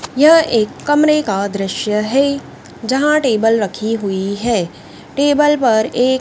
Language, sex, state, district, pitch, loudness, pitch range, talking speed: Hindi, female, Madhya Pradesh, Dhar, 235 Hz, -15 LUFS, 210-290 Hz, 135 wpm